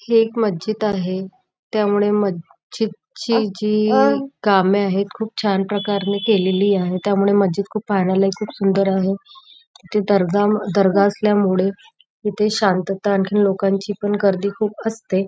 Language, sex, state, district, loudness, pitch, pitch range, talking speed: Marathi, female, Maharashtra, Nagpur, -19 LUFS, 200 Hz, 195-215 Hz, 130 wpm